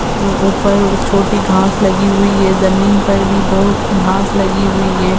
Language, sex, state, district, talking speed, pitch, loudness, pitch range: Hindi, female, Uttar Pradesh, Hamirpur, 175 wpm, 200 Hz, -12 LUFS, 195-200 Hz